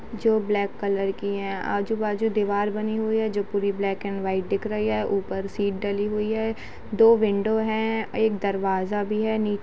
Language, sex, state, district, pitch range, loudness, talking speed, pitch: Hindi, female, Bihar, Gopalganj, 200-220 Hz, -25 LUFS, 205 wpm, 210 Hz